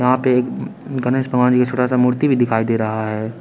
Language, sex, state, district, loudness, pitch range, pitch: Hindi, male, Chandigarh, Chandigarh, -18 LUFS, 115-125 Hz, 125 Hz